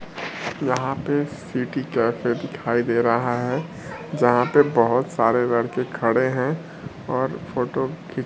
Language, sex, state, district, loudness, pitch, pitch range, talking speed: Hindi, male, Bihar, Kaimur, -22 LUFS, 125 Hz, 120-145 Hz, 140 wpm